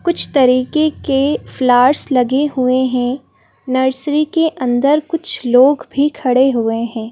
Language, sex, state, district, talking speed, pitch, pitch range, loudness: Hindi, female, Madhya Pradesh, Bhopal, 135 wpm, 265 Hz, 250-295 Hz, -15 LUFS